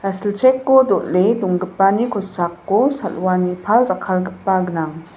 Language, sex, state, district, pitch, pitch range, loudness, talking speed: Garo, female, Meghalaya, West Garo Hills, 190 Hz, 180-225 Hz, -17 LUFS, 105 wpm